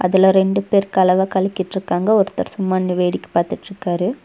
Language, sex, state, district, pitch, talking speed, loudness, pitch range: Tamil, female, Tamil Nadu, Nilgiris, 190 Hz, 140 wpm, -18 LUFS, 185-195 Hz